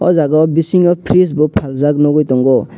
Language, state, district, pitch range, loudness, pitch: Kokborok, Tripura, West Tripura, 145-170 Hz, -12 LUFS, 150 Hz